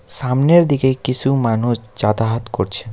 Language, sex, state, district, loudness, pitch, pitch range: Bengali, male, West Bengal, Alipurduar, -17 LUFS, 125 Hz, 115-130 Hz